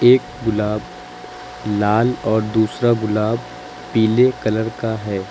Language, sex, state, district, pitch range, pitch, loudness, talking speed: Hindi, male, Uttar Pradesh, Lucknow, 105-120 Hz, 110 Hz, -19 LUFS, 115 wpm